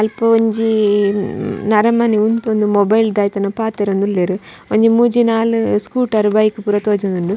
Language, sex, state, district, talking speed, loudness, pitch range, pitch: Tulu, female, Karnataka, Dakshina Kannada, 120 wpm, -15 LUFS, 205-225 Hz, 215 Hz